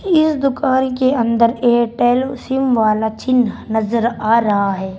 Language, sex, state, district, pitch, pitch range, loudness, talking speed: Hindi, female, Uttar Pradesh, Shamli, 240 Hz, 220-260 Hz, -16 LUFS, 145 wpm